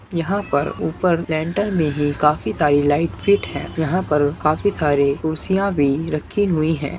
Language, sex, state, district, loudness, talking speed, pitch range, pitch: Hindi, male, Uttar Pradesh, Muzaffarnagar, -19 LUFS, 170 wpm, 145-180 Hz, 155 Hz